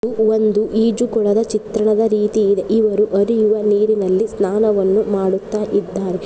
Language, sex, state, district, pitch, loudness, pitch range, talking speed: Kannada, female, Karnataka, Gulbarga, 215 Hz, -16 LUFS, 200-220 Hz, 125 wpm